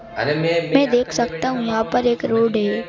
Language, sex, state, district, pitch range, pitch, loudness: Hindi, male, Madhya Pradesh, Bhopal, 215-245 Hz, 230 Hz, -19 LUFS